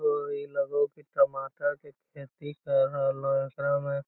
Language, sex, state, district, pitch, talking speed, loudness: Magahi, male, Bihar, Lakhisarai, 150 Hz, 190 wpm, -29 LUFS